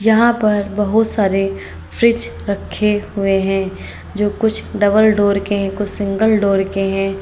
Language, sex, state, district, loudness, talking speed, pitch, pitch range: Hindi, female, Uttar Pradesh, Saharanpur, -16 LUFS, 150 wpm, 205 Hz, 195-210 Hz